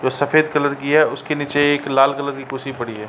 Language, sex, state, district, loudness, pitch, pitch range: Hindi, male, Uttar Pradesh, Varanasi, -18 LUFS, 140 Hz, 135-145 Hz